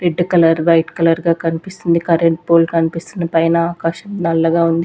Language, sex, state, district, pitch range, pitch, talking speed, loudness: Telugu, female, Andhra Pradesh, Sri Satya Sai, 165-170 Hz, 165 Hz, 160 wpm, -15 LUFS